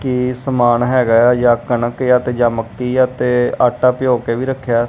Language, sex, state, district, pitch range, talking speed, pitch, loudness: Punjabi, male, Punjab, Kapurthala, 120-125 Hz, 210 wpm, 125 Hz, -15 LUFS